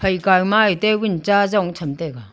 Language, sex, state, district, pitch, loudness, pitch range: Wancho, female, Arunachal Pradesh, Longding, 190 Hz, -17 LUFS, 170-205 Hz